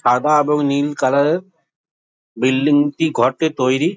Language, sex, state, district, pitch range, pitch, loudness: Bengali, male, West Bengal, Jhargram, 140-155 Hz, 145 Hz, -17 LUFS